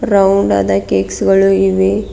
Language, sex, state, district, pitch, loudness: Kannada, female, Karnataka, Bidar, 195 Hz, -12 LUFS